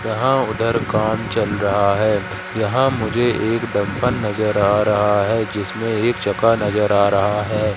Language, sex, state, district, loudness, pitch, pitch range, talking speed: Hindi, male, Madhya Pradesh, Katni, -18 LUFS, 110 Hz, 105-115 Hz, 160 wpm